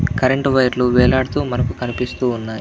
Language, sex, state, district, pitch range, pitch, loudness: Telugu, male, Andhra Pradesh, Anantapur, 125-130 Hz, 125 Hz, -17 LUFS